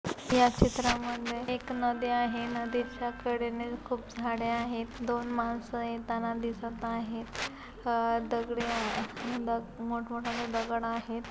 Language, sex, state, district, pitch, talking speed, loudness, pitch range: Marathi, female, Maharashtra, Pune, 235 Hz, 115 wpm, -32 LUFS, 230-240 Hz